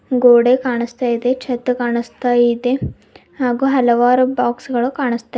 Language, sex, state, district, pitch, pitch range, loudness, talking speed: Kannada, female, Karnataka, Bidar, 245 Hz, 240-255 Hz, -16 LUFS, 125 wpm